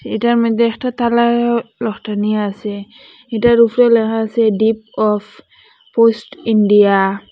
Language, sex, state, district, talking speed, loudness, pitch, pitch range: Bengali, female, Assam, Hailakandi, 125 wpm, -15 LUFS, 225 Hz, 210-235 Hz